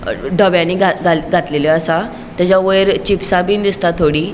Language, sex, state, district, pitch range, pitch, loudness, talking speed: Konkani, female, Goa, North and South Goa, 165-195 Hz, 180 Hz, -14 LUFS, 165 wpm